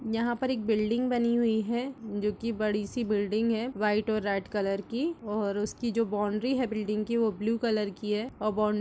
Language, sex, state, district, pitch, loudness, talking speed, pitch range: Hindi, female, Chhattisgarh, Raigarh, 220 Hz, -29 LUFS, 220 wpm, 210-235 Hz